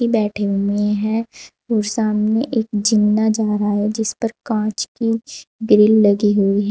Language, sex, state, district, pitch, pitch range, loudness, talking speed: Hindi, female, Uttar Pradesh, Saharanpur, 215 Hz, 210-225 Hz, -18 LUFS, 160 wpm